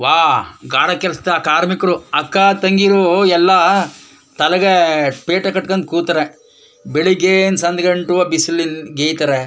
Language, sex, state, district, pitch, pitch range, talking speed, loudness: Kannada, male, Karnataka, Chamarajanagar, 180 Hz, 160-190 Hz, 100 wpm, -14 LUFS